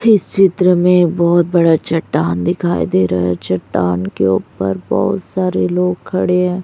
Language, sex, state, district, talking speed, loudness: Hindi, female, Chhattisgarh, Raipur, 165 wpm, -15 LUFS